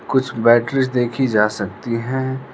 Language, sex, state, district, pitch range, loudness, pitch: Hindi, male, Arunachal Pradesh, Lower Dibang Valley, 115-130 Hz, -18 LUFS, 120 Hz